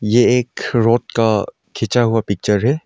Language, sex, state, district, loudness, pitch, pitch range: Hindi, male, Arunachal Pradesh, Longding, -17 LUFS, 115 Hz, 110-120 Hz